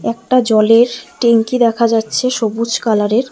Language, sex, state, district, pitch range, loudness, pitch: Bengali, female, West Bengal, Alipurduar, 225-240 Hz, -14 LUFS, 230 Hz